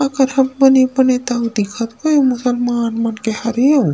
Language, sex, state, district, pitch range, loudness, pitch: Chhattisgarhi, male, Chhattisgarh, Rajnandgaon, 230-270 Hz, -15 LUFS, 250 Hz